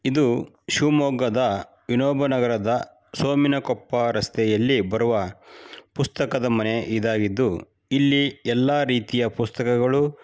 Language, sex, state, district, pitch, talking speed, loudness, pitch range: Kannada, male, Karnataka, Shimoga, 125 Hz, 80 wpm, -22 LUFS, 115-140 Hz